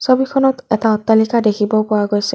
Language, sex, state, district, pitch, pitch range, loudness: Assamese, female, Assam, Kamrup Metropolitan, 220 Hz, 210-255 Hz, -15 LUFS